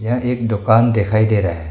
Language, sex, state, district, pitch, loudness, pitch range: Hindi, male, Arunachal Pradesh, Longding, 110 Hz, -16 LUFS, 105-120 Hz